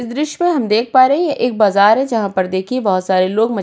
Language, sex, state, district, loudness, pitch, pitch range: Hindi, female, Uttar Pradesh, Jyotiba Phule Nagar, -15 LUFS, 225 Hz, 200-265 Hz